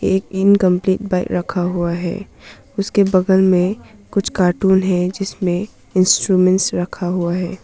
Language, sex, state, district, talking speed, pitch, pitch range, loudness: Hindi, female, Arunachal Pradesh, Papum Pare, 135 wpm, 185 Hz, 180-195 Hz, -17 LUFS